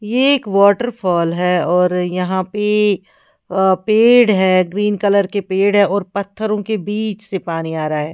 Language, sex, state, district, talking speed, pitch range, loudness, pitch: Hindi, female, Odisha, Khordha, 175 wpm, 180-210 Hz, -16 LUFS, 200 Hz